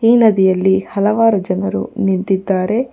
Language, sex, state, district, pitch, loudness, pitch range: Kannada, female, Karnataka, Bangalore, 195 Hz, -15 LUFS, 190-225 Hz